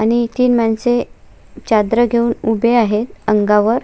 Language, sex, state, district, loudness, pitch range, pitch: Marathi, female, Maharashtra, Sindhudurg, -15 LUFS, 215-240 Hz, 230 Hz